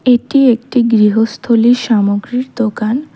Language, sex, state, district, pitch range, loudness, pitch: Bengali, female, Tripura, West Tripura, 220-250 Hz, -13 LUFS, 235 Hz